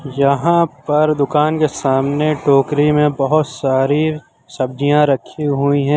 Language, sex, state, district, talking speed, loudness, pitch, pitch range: Hindi, male, Uttar Pradesh, Lucknow, 130 wpm, -16 LUFS, 145 Hz, 140-150 Hz